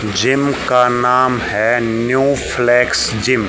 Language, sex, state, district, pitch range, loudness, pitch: Hindi, male, Haryana, Charkhi Dadri, 120-130 Hz, -14 LUFS, 125 Hz